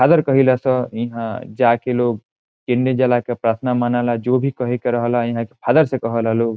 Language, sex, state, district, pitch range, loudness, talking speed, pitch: Bhojpuri, male, Bihar, Saran, 115-130 Hz, -18 LUFS, 185 wpm, 120 Hz